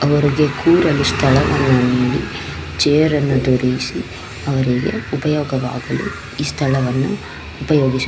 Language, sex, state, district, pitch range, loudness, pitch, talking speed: Kannada, female, Karnataka, Belgaum, 125-145 Hz, -17 LUFS, 135 Hz, 95 wpm